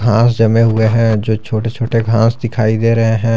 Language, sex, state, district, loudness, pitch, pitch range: Hindi, male, Jharkhand, Garhwa, -13 LUFS, 115 Hz, 110-115 Hz